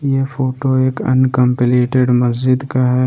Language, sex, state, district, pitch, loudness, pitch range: Hindi, male, Jharkhand, Ranchi, 130 Hz, -15 LUFS, 125-130 Hz